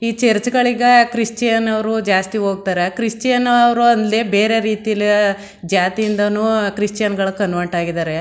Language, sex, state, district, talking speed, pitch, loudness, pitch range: Kannada, female, Karnataka, Mysore, 125 wpm, 215 Hz, -16 LUFS, 200-230 Hz